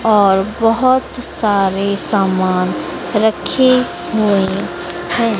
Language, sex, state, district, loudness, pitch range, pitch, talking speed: Hindi, female, Madhya Pradesh, Dhar, -15 LUFS, 190-225 Hz, 200 Hz, 80 wpm